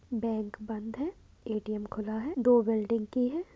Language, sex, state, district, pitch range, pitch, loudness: Hindi, female, Uttar Pradesh, Budaun, 215-250 Hz, 225 Hz, -31 LUFS